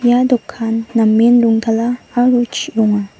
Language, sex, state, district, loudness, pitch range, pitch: Garo, female, Meghalaya, West Garo Hills, -14 LUFS, 225-245 Hz, 235 Hz